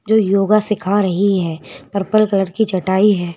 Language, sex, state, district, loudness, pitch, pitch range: Hindi, female, Madhya Pradesh, Bhopal, -16 LUFS, 200 Hz, 185-210 Hz